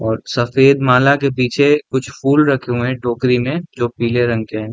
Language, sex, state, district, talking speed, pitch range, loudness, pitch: Hindi, male, Bihar, Darbhanga, 215 wpm, 120-140 Hz, -15 LUFS, 125 Hz